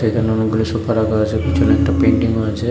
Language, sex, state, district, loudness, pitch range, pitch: Bengali, male, Tripura, West Tripura, -16 LUFS, 105-110 Hz, 110 Hz